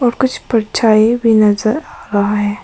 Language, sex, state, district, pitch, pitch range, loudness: Hindi, female, Arunachal Pradesh, Papum Pare, 220 Hz, 210-235 Hz, -14 LUFS